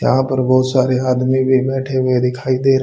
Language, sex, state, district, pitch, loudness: Hindi, male, Haryana, Charkhi Dadri, 130 Hz, -16 LUFS